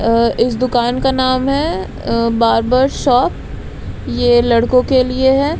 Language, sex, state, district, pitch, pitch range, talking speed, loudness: Hindi, female, Bihar, Patna, 250 Hz, 235-265 Hz, 150 wpm, -14 LUFS